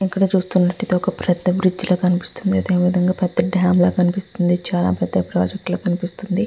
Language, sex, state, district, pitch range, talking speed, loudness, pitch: Telugu, female, Andhra Pradesh, Guntur, 180-190 Hz, 160 wpm, -19 LUFS, 180 Hz